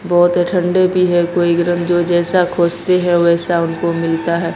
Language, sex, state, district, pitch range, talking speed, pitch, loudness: Hindi, female, Bihar, Katihar, 170-175 Hz, 185 wpm, 175 Hz, -15 LUFS